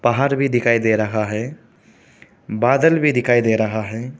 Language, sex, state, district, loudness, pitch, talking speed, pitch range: Hindi, male, Arunachal Pradesh, Papum Pare, -18 LUFS, 120 Hz, 170 wpm, 110-140 Hz